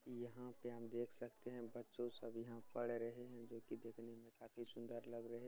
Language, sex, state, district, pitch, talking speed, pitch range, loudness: Hindi, male, Bihar, Supaul, 120 Hz, 220 wpm, 115-120 Hz, -51 LUFS